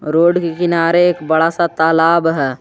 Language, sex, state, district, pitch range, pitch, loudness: Hindi, male, Jharkhand, Garhwa, 160-170 Hz, 165 Hz, -14 LUFS